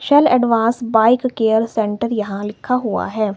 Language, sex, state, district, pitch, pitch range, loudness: Hindi, female, Himachal Pradesh, Shimla, 225 Hz, 215-245 Hz, -17 LUFS